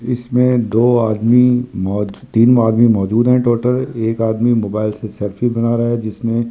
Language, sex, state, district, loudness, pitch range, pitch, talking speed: Hindi, male, Delhi, New Delhi, -15 LUFS, 110-120 Hz, 115 Hz, 165 wpm